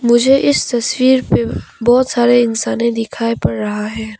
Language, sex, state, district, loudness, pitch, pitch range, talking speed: Hindi, female, Arunachal Pradesh, Papum Pare, -14 LUFS, 235 Hz, 225-255 Hz, 155 wpm